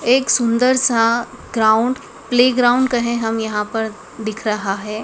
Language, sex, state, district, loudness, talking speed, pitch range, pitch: Hindi, female, Madhya Pradesh, Dhar, -17 LUFS, 145 wpm, 220-245 Hz, 230 Hz